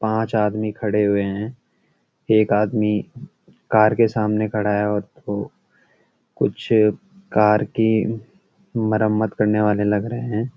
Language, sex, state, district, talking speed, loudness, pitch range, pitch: Hindi, male, Uttarakhand, Uttarkashi, 130 wpm, -20 LUFS, 105-110 Hz, 110 Hz